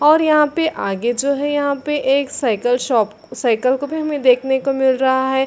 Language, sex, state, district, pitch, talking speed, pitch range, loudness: Hindi, female, Chhattisgarh, Bilaspur, 265 Hz, 220 wpm, 250-290 Hz, -17 LUFS